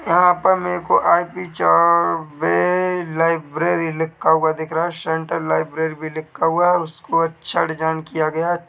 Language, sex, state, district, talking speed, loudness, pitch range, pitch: Hindi, male, Chhattisgarh, Bilaspur, 175 wpm, -19 LUFS, 160-175 Hz, 165 Hz